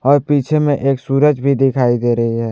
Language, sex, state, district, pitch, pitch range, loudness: Hindi, male, Jharkhand, Ranchi, 135 Hz, 120-145 Hz, -15 LUFS